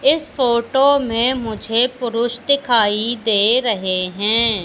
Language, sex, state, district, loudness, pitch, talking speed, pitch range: Hindi, female, Madhya Pradesh, Katni, -17 LUFS, 235 Hz, 115 wpm, 220-255 Hz